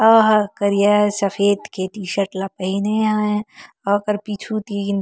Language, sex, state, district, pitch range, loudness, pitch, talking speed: Chhattisgarhi, female, Chhattisgarh, Korba, 200-210 Hz, -19 LUFS, 205 Hz, 145 wpm